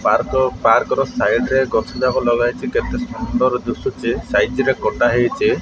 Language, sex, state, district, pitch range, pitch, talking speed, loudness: Odia, male, Odisha, Malkangiri, 120-135 Hz, 130 Hz, 205 wpm, -18 LUFS